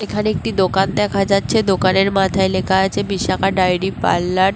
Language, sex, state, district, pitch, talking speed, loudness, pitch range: Bengali, female, West Bengal, Paschim Medinipur, 195 Hz, 170 wpm, -17 LUFS, 190-200 Hz